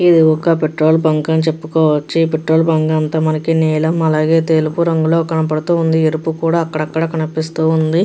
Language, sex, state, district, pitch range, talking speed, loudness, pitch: Telugu, female, Andhra Pradesh, Chittoor, 155-165 Hz, 155 wpm, -15 LUFS, 160 Hz